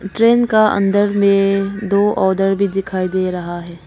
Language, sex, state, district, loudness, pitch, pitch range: Hindi, female, Arunachal Pradesh, Longding, -15 LUFS, 195 Hz, 190-205 Hz